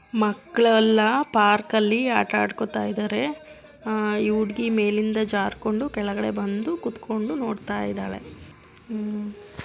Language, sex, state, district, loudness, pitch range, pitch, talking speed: Kannada, female, Karnataka, Dakshina Kannada, -23 LUFS, 205-230 Hz, 215 Hz, 100 wpm